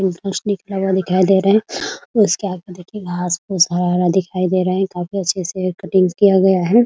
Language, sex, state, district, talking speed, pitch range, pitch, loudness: Hindi, female, Bihar, Muzaffarpur, 175 wpm, 180-200 Hz, 190 Hz, -17 LUFS